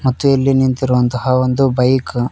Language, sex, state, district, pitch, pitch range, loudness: Kannada, male, Karnataka, Koppal, 130 Hz, 125-135 Hz, -15 LUFS